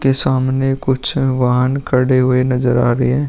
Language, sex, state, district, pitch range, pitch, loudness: Hindi, male, Uttar Pradesh, Muzaffarnagar, 125-135 Hz, 130 Hz, -15 LUFS